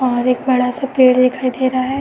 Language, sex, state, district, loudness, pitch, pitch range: Hindi, female, Uttar Pradesh, Etah, -15 LUFS, 255 Hz, 255-260 Hz